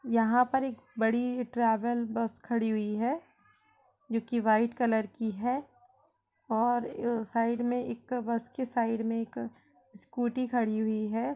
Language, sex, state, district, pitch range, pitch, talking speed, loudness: Hindi, female, Uttar Pradesh, Budaun, 225-250 Hz, 235 Hz, 150 wpm, -31 LUFS